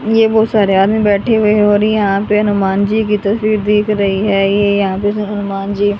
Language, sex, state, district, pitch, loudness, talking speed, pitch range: Hindi, female, Haryana, Charkhi Dadri, 205 Hz, -13 LUFS, 250 wpm, 200-210 Hz